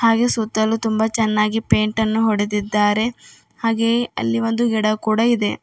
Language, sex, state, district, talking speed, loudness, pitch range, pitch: Kannada, female, Karnataka, Bidar, 140 wpm, -19 LUFS, 215-230 Hz, 220 Hz